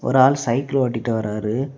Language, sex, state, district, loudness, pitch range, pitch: Tamil, male, Tamil Nadu, Kanyakumari, -20 LUFS, 115-135 Hz, 130 Hz